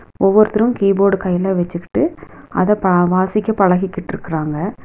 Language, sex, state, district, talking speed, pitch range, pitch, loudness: Tamil, female, Tamil Nadu, Nilgiris, 110 wpm, 180-210 Hz, 195 Hz, -16 LUFS